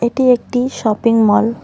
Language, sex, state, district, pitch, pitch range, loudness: Bengali, female, West Bengal, Cooch Behar, 235 Hz, 220-250 Hz, -14 LUFS